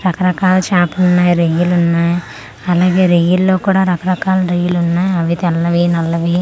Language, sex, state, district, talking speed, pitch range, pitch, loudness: Telugu, female, Andhra Pradesh, Manyam, 120 wpm, 170-185 Hz, 175 Hz, -13 LUFS